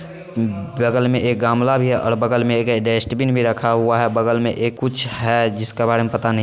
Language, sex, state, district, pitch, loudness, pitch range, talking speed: Hindi, male, Bihar, Purnia, 115 Hz, -18 LUFS, 115-125 Hz, 235 wpm